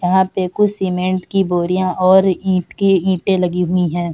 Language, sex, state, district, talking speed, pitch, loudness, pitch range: Hindi, female, Bihar, Samastipur, 190 wpm, 185 Hz, -16 LUFS, 180-190 Hz